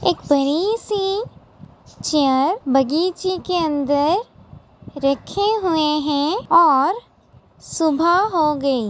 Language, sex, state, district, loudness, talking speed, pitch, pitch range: Hindi, female, Uttar Pradesh, Muzaffarnagar, -19 LUFS, 95 wpm, 320 Hz, 285-390 Hz